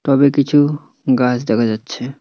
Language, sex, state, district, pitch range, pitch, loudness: Bengali, male, West Bengal, Cooch Behar, 125-145 Hz, 135 Hz, -16 LUFS